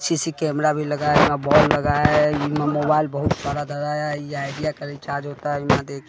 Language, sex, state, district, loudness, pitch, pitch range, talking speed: Hindi, male, Bihar, West Champaran, -21 LUFS, 150 Hz, 145-150 Hz, 205 wpm